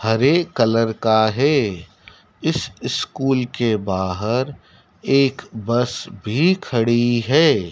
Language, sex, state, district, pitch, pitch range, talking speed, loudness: Hindi, male, Madhya Pradesh, Dhar, 115 Hz, 105-130 Hz, 100 wpm, -19 LUFS